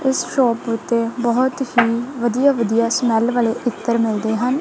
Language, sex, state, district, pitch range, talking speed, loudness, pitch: Punjabi, female, Punjab, Kapurthala, 230-255 Hz, 145 wpm, -18 LUFS, 235 Hz